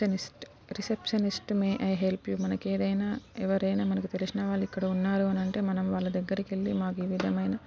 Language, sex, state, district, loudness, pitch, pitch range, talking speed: Telugu, female, Telangana, Nalgonda, -30 LUFS, 195 Hz, 185-200 Hz, 195 wpm